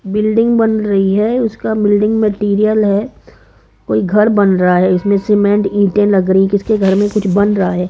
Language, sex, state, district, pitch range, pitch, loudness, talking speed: Hindi, female, Chhattisgarh, Korba, 195-215 Hz, 205 Hz, -13 LUFS, 190 wpm